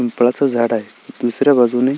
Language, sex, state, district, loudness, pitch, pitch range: Marathi, male, Maharashtra, Sindhudurg, -16 LUFS, 120 Hz, 120-130 Hz